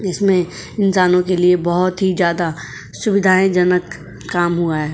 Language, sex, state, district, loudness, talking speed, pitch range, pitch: Hindi, female, Uttar Pradesh, Jyotiba Phule Nagar, -16 LUFS, 135 wpm, 175-190 Hz, 180 Hz